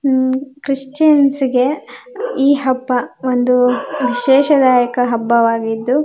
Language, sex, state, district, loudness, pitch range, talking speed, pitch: Kannada, female, Karnataka, Belgaum, -15 LUFS, 250-280 Hz, 80 wpm, 260 Hz